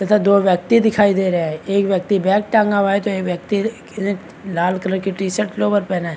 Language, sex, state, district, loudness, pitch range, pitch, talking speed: Hindi, male, Chhattisgarh, Bastar, -18 LUFS, 185-205 Hz, 200 Hz, 255 wpm